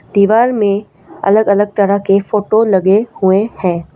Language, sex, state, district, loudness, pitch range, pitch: Hindi, female, Assam, Kamrup Metropolitan, -13 LUFS, 190-215 Hz, 200 Hz